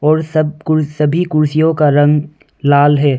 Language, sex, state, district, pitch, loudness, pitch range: Hindi, male, Arunachal Pradesh, Longding, 150 Hz, -13 LUFS, 145-155 Hz